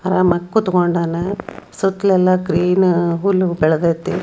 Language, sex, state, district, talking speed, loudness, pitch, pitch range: Kannada, female, Karnataka, Dharwad, 125 wpm, -16 LUFS, 185 Hz, 175-190 Hz